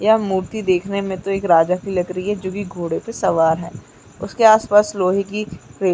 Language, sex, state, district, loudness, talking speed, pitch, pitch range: Chhattisgarhi, female, Chhattisgarh, Jashpur, -18 LUFS, 220 wpm, 190 Hz, 175-205 Hz